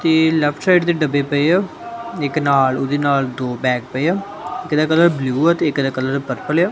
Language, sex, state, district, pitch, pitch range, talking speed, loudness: Punjabi, male, Punjab, Kapurthala, 150 Hz, 135-170 Hz, 240 wpm, -17 LUFS